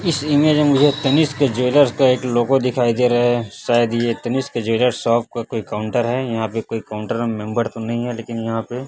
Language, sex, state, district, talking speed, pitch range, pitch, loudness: Hindi, male, Chhattisgarh, Raipur, 235 wpm, 115-130 Hz, 120 Hz, -18 LUFS